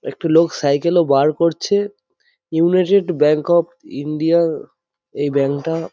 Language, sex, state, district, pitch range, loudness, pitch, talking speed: Bengali, male, West Bengal, Jhargram, 150-170 Hz, -17 LUFS, 165 Hz, 140 wpm